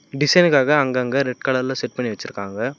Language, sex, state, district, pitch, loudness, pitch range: Tamil, male, Tamil Nadu, Namakkal, 135 Hz, -19 LUFS, 125-145 Hz